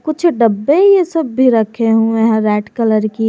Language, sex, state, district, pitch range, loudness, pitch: Hindi, female, Jharkhand, Garhwa, 220-305 Hz, -13 LUFS, 225 Hz